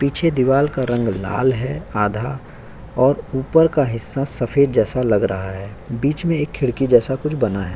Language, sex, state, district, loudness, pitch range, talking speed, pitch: Hindi, male, Uttar Pradesh, Jyotiba Phule Nagar, -19 LUFS, 115-140 Hz, 185 wpm, 130 Hz